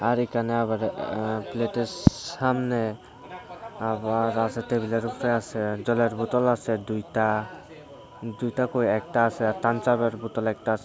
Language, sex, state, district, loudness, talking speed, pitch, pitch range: Bengali, male, Tripura, West Tripura, -26 LUFS, 140 wpm, 115 Hz, 110-120 Hz